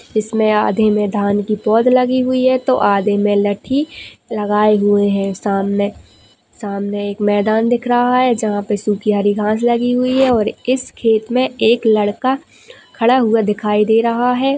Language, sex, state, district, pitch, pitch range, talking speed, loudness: Hindi, female, Chhattisgarh, Jashpur, 215 Hz, 205-245 Hz, 175 wpm, -15 LUFS